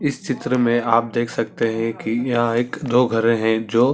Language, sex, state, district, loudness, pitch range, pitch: Hindi, male, Chhattisgarh, Sarguja, -20 LUFS, 115-125 Hz, 120 Hz